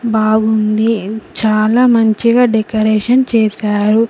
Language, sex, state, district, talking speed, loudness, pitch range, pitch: Telugu, female, Andhra Pradesh, Sri Satya Sai, 90 wpm, -13 LUFS, 215-230 Hz, 220 Hz